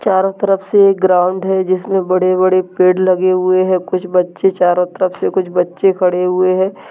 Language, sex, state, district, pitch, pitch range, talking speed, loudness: Hindi, male, Chhattisgarh, Balrampur, 185 Hz, 180-190 Hz, 200 wpm, -14 LUFS